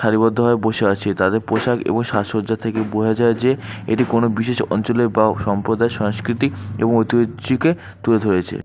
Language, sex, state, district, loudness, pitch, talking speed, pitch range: Bengali, male, West Bengal, Alipurduar, -19 LUFS, 110 Hz, 155 wpm, 105-120 Hz